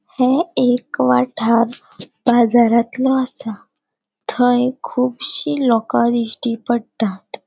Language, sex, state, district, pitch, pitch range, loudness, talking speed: Konkani, female, Goa, North and South Goa, 240 Hz, 230-255 Hz, -17 LUFS, 80 wpm